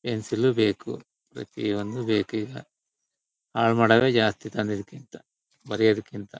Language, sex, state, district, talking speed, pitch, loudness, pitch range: Kannada, male, Karnataka, Shimoga, 95 wpm, 110 Hz, -24 LUFS, 105-115 Hz